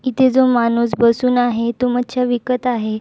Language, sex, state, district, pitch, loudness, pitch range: Marathi, female, Maharashtra, Nagpur, 245 Hz, -16 LUFS, 235-250 Hz